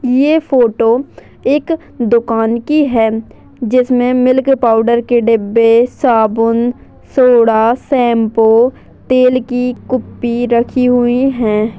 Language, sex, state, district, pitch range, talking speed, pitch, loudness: Hindi, female, Chhattisgarh, Jashpur, 230-255 Hz, 100 wpm, 240 Hz, -12 LUFS